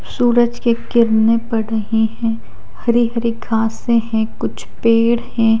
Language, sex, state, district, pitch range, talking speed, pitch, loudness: Hindi, female, Odisha, Khordha, 225-235 Hz, 140 wpm, 230 Hz, -17 LUFS